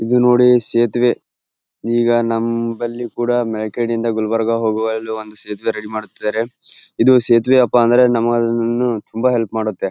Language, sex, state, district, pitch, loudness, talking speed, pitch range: Kannada, male, Karnataka, Gulbarga, 115 Hz, -16 LUFS, 140 wpm, 110-120 Hz